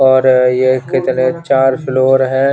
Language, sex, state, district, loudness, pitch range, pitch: Hindi, male, Chandigarh, Chandigarh, -12 LUFS, 130-135 Hz, 130 Hz